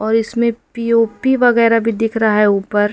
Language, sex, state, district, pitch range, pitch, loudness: Hindi, female, Madhya Pradesh, Umaria, 215-235 Hz, 225 Hz, -15 LUFS